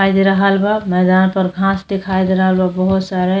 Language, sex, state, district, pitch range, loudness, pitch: Bhojpuri, female, Uttar Pradesh, Deoria, 185-195 Hz, -15 LUFS, 190 Hz